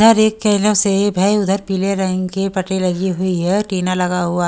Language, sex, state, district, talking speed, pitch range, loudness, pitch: Hindi, female, Haryana, Charkhi Dadri, 175 wpm, 185-205 Hz, -16 LUFS, 190 Hz